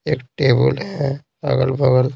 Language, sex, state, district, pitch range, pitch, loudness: Hindi, male, Bihar, Patna, 130-145 Hz, 135 Hz, -19 LUFS